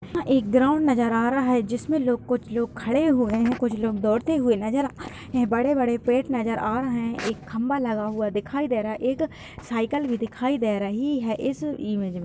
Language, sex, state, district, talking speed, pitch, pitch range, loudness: Hindi, female, Uttar Pradesh, Gorakhpur, 225 wpm, 240 Hz, 225-265 Hz, -24 LUFS